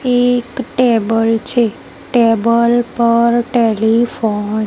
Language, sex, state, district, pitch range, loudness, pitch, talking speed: Gujarati, female, Gujarat, Gandhinagar, 225-240 Hz, -14 LUFS, 235 Hz, 90 wpm